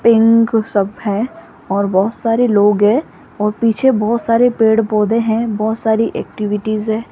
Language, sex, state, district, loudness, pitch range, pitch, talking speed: Hindi, female, Rajasthan, Jaipur, -15 LUFS, 210-230 Hz, 220 Hz, 150 wpm